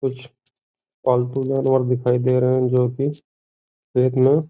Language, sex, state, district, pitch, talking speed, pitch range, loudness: Hindi, male, Uttar Pradesh, Hamirpur, 130 Hz, 135 wpm, 125-135 Hz, -20 LUFS